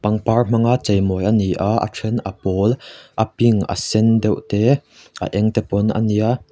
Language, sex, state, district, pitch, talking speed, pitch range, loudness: Mizo, male, Mizoram, Aizawl, 110 Hz, 200 wpm, 100-115 Hz, -18 LUFS